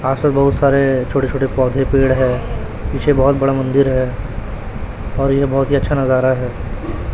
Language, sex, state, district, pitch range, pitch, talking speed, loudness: Hindi, male, Chhattisgarh, Raipur, 115-135 Hz, 130 Hz, 175 wpm, -16 LUFS